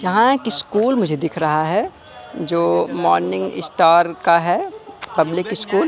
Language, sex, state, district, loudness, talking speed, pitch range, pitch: Hindi, male, Madhya Pradesh, Katni, -17 LUFS, 155 wpm, 140-225 Hz, 170 Hz